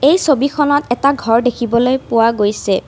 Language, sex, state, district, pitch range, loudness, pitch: Assamese, female, Assam, Kamrup Metropolitan, 230-285 Hz, -14 LUFS, 245 Hz